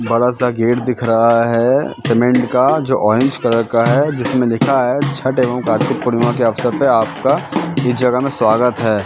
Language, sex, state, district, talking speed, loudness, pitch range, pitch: Hindi, male, Madhya Pradesh, Katni, 185 wpm, -15 LUFS, 115-130 Hz, 125 Hz